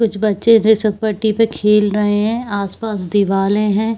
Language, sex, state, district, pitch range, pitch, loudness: Hindi, female, Chhattisgarh, Bilaspur, 205-220 Hz, 210 Hz, -15 LUFS